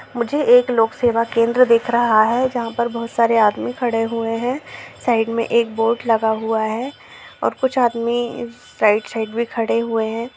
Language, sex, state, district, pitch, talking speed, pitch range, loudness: Hindi, female, Chhattisgarh, Rajnandgaon, 230 Hz, 180 wpm, 225-240 Hz, -18 LUFS